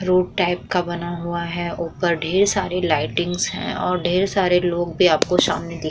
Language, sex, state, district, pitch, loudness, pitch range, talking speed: Hindi, female, Uttar Pradesh, Muzaffarnagar, 175 Hz, -20 LUFS, 170-180 Hz, 205 wpm